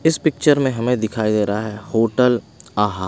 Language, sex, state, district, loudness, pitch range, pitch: Hindi, male, Bihar, Kaimur, -19 LUFS, 105-135 Hz, 115 Hz